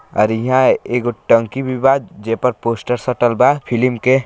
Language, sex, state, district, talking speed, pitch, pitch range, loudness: Hindi, male, Bihar, Gopalganj, 185 wpm, 125 Hz, 115-130 Hz, -16 LUFS